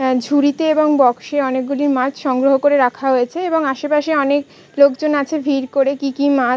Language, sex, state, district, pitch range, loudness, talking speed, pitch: Bengali, female, West Bengal, Kolkata, 265-290 Hz, -16 LUFS, 190 wpm, 280 Hz